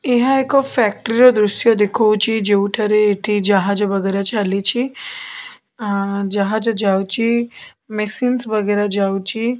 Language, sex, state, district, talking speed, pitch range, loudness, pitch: Odia, female, Odisha, Khordha, 105 wpm, 200-240 Hz, -17 LUFS, 215 Hz